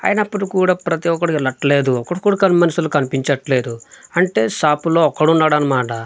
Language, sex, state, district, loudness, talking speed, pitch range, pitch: Telugu, male, Andhra Pradesh, Manyam, -16 LUFS, 150 wpm, 135-175 Hz, 155 Hz